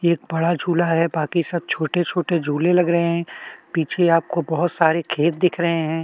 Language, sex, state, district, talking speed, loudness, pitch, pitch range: Hindi, male, Chhattisgarh, Kabirdham, 180 wpm, -20 LUFS, 170 Hz, 160-175 Hz